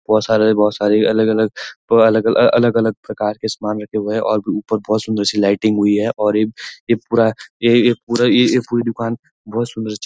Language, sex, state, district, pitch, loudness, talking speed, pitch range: Hindi, male, Uttarakhand, Uttarkashi, 110 Hz, -16 LUFS, 195 wpm, 105-115 Hz